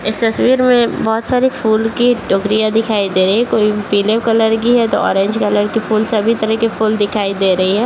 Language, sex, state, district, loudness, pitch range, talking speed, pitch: Hindi, female, Bihar, Saharsa, -14 LUFS, 205-230 Hz, 230 wpm, 220 Hz